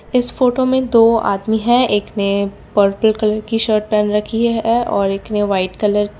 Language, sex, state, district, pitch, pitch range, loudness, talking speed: Hindi, female, Gujarat, Valsad, 215 Hz, 205-230 Hz, -16 LUFS, 205 wpm